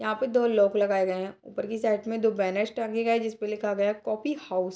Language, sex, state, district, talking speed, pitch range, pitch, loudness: Hindi, female, Bihar, Purnia, 265 wpm, 200-230 Hz, 215 Hz, -27 LUFS